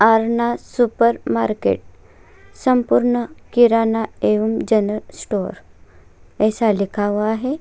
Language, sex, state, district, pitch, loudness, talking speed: Hindi, female, Chhattisgarh, Kabirdham, 220 Hz, -18 LUFS, 95 wpm